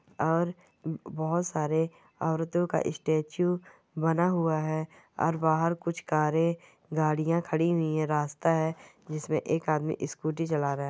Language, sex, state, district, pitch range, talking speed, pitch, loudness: Hindi, female, West Bengal, North 24 Parganas, 155-170 Hz, 145 wpm, 160 Hz, -29 LUFS